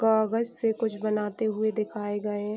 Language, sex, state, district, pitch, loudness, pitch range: Hindi, female, Bihar, Saharsa, 215 Hz, -28 LUFS, 210-225 Hz